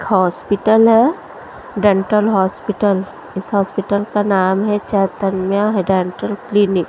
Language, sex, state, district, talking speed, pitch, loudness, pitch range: Hindi, female, Haryana, Charkhi Dadri, 115 wpm, 200 Hz, -16 LUFS, 190-210 Hz